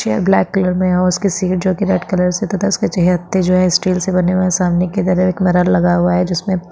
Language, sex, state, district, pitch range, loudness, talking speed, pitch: Hindi, female, Chhattisgarh, Sukma, 180-190 Hz, -15 LUFS, 260 wpm, 185 Hz